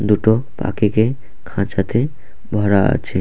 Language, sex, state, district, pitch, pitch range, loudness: Bengali, male, West Bengal, Purulia, 105 Hz, 100-120 Hz, -18 LUFS